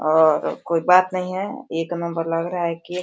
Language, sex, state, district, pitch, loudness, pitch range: Hindi, female, Uttar Pradesh, Deoria, 170 Hz, -21 LUFS, 165-180 Hz